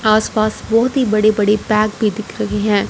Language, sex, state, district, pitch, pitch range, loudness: Hindi, male, Punjab, Fazilka, 215 Hz, 210-215 Hz, -16 LUFS